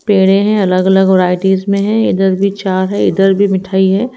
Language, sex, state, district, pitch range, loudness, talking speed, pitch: Hindi, female, Haryana, Rohtak, 190-200 Hz, -12 LUFS, 215 wpm, 190 Hz